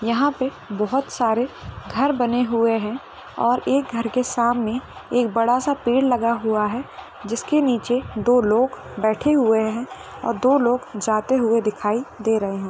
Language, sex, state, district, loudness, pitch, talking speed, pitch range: Hindi, female, Bihar, Gopalganj, -21 LUFS, 235 Hz, 165 wpm, 220-255 Hz